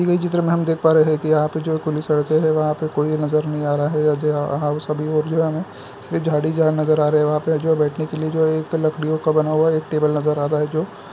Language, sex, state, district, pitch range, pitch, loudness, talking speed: Hindi, male, Bihar, Madhepura, 150-160 Hz, 155 Hz, -19 LUFS, 340 wpm